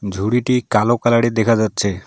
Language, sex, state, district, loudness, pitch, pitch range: Bengali, male, West Bengal, Alipurduar, -16 LUFS, 115 Hz, 105-120 Hz